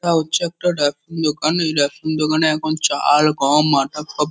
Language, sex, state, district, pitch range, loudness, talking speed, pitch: Bengali, male, West Bengal, Kolkata, 150-160 Hz, -18 LUFS, 195 wpm, 155 Hz